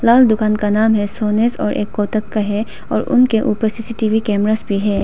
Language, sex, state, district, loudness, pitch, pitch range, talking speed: Hindi, female, Arunachal Pradesh, Papum Pare, -16 LUFS, 215 Hz, 210-225 Hz, 215 wpm